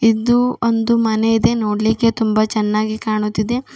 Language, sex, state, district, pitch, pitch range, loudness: Kannada, female, Karnataka, Bidar, 225 Hz, 215-230 Hz, -17 LUFS